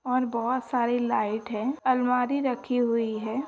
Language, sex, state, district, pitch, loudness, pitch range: Hindi, female, Maharashtra, Pune, 245 Hz, -26 LUFS, 230-255 Hz